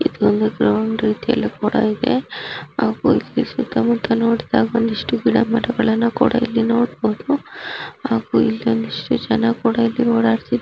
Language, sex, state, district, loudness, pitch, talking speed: Kannada, female, Karnataka, Raichur, -18 LUFS, 230 Hz, 115 wpm